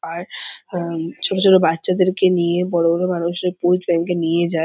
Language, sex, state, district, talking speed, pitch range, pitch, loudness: Bengali, female, West Bengal, Purulia, 195 wpm, 170-180 Hz, 175 Hz, -18 LUFS